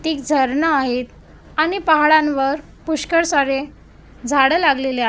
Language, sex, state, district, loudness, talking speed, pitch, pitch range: Marathi, female, Maharashtra, Gondia, -17 LUFS, 115 wpm, 285 Hz, 270-310 Hz